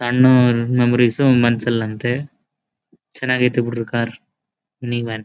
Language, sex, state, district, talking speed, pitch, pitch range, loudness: Kannada, male, Karnataka, Bellary, 105 wpm, 120 Hz, 120-125 Hz, -17 LUFS